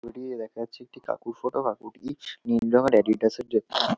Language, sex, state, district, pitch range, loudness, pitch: Bengali, male, West Bengal, North 24 Parganas, 115-125 Hz, -26 LUFS, 115 Hz